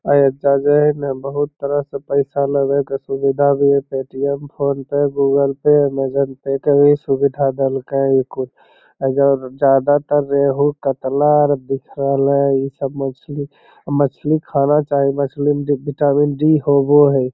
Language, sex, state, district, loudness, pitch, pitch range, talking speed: Magahi, male, Bihar, Lakhisarai, -17 LUFS, 140 Hz, 135-145 Hz, 150 wpm